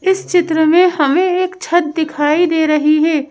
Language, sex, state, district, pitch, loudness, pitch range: Hindi, female, Madhya Pradesh, Bhopal, 320 Hz, -14 LUFS, 310-360 Hz